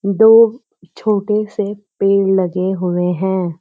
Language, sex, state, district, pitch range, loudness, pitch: Hindi, female, Uttarakhand, Uttarkashi, 185-210 Hz, -15 LUFS, 195 Hz